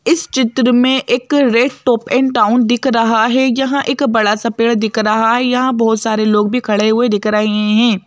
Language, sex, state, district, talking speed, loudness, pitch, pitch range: Hindi, female, Madhya Pradesh, Bhopal, 215 wpm, -13 LUFS, 235 Hz, 220-255 Hz